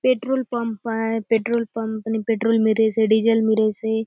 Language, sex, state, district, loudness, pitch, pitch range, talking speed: Halbi, female, Chhattisgarh, Bastar, -21 LUFS, 225 Hz, 220-230 Hz, 150 wpm